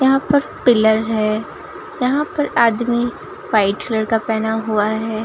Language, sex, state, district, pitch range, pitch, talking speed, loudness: Hindi, female, Bihar, Katihar, 220-280 Hz, 230 Hz, 150 wpm, -18 LUFS